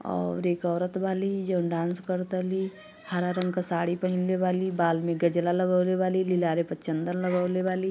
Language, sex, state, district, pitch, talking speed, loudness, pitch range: Bhojpuri, female, Uttar Pradesh, Gorakhpur, 180 Hz, 180 wpm, -27 LUFS, 175-185 Hz